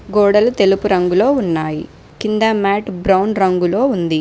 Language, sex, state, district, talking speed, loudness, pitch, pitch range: Telugu, female, Telangana, Mahabubabad, 130 wpm, -15 LUFS, 195 Hz, 180-215 Hz